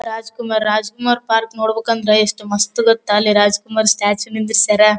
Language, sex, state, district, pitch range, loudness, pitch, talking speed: Kannada, female, Karnataka, Bellary, 210-225 Hz, -15 LUFS, 220 Hz, 130 wpm